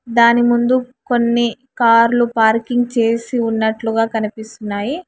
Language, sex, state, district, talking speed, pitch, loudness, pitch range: Telugu, female, Telangana, Hyderabad, 95 wpm, 235 Hz, -16 LUFS, 225-240 Hz